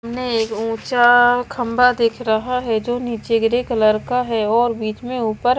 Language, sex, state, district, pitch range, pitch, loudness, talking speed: Hindi, female, Himachal Pradesh, Shimla, 225-245 Hz, 235 Hz, -18 LUFS, 170 wpm